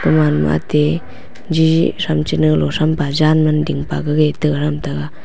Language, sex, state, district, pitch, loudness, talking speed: Wancho, female, Arunachal Pradesh, Longding, 150 Hz, -16 LUFS, 150 wpm